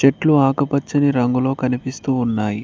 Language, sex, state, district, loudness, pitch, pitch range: Telugu, male, Telangana, Mahabubabad, -18 LUFS, 130 Hz, 125-140 Hz